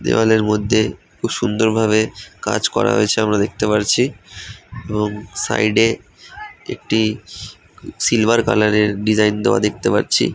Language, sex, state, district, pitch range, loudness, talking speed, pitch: Bengali, male, West Bengal, North 24 Parganas, 105-115 Hz, -17 LUFS, 135 wpm, 110 Hz